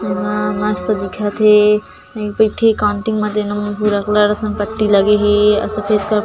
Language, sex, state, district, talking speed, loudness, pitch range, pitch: Chhattisgarhi, female, Chhattisgarh, Jashpur, 200 wpm, -15 LUFS, 205-210 Hz, 210 Hz